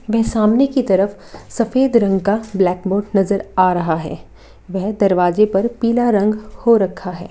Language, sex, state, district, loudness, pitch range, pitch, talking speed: Hindi, female, Jharkhand, Sahebganj, -16 LUFS, 185-225 Hz, 200 Hz, 170 wpm